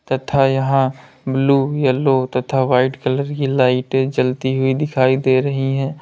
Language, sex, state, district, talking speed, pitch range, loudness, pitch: Hindi, male, Uttar Pradesh, Lalitpur, 150 wpm, 130-135 Hz, -17 LUFS, 135 Hz